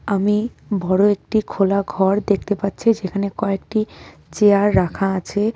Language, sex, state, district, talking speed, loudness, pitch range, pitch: Bengali, female, West Bengal, Cooch Behar, 130 wpm, -19 LUFS, 195-210 Hz, 200 Hz